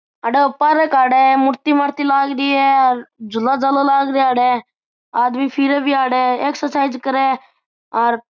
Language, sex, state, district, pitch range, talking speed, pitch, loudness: Marwari, male, Rajasthan, Churu, 255-275 Hz, 150 wpm, 270 Hz, -16 LUFS